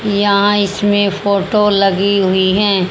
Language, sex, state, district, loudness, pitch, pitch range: Hindi, male, Haryana, Jhajjar, -13 LUFS, 200 Hz, 195-205 Hz